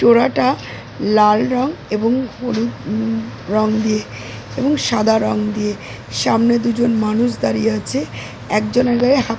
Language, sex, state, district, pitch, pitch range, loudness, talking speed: Bengali, female, West Bengal, Jalpaiguri, 225 Hz, 210-240 Hz, -17 LUFS, 135 wpm